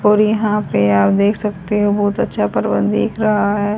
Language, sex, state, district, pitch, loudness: Hindi, female, Haryana, Rohtak, 205 Hz, -16 LUFS